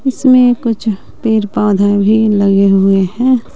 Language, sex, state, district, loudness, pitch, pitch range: Hindi, female, Bihar, West Champaran, -11 LUFS, 215 Hz, 200-245 Hz